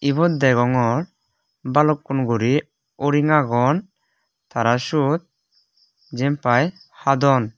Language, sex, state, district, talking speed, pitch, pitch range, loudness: Chakma, male, Tripura, West Tripura, 80 wpm, 140 Hz, 125-155 Hz, -20 LUFS